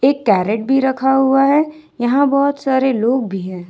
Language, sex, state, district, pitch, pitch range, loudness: Hindi, female, Jharkhand, Ranchi, 265 Hz, 235-275 Hz, -16 LUFS